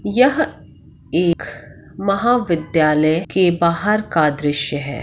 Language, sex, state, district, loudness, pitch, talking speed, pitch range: Hindi, female, Bihar, Madhepura, -17 LUFS, 170 Hz, 95 wpm, 155-205 Hz